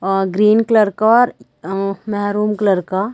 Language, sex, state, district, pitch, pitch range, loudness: Hindi, female, Chhattisgarh, Bilaspur, 205 Hz, 195-215 Hz, -16 LUFS